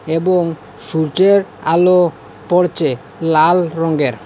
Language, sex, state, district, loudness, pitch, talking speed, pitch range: Bengali, male, Assam, Hailakandi, -15 LUFS, 165 Hz, 100 wpm, 160-180 Hz